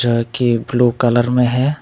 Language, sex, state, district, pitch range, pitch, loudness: Hindi, male, Tripura, West Tripura, 120-125 Hz, 120 Hz, -16 LUFS